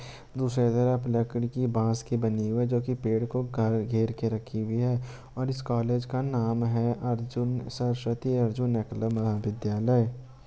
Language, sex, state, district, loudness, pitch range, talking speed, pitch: Hindi, male, Bihar, Jamui, -28 LUFS, 115-125 Hz, 180 wpm, 120 Hz